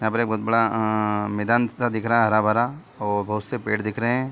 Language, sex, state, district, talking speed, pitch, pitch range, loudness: Hindi, male, Chhattisgarh, Bilaspur, 250 wpm, 110 Hz, 105-120 Hz, -23 LUFS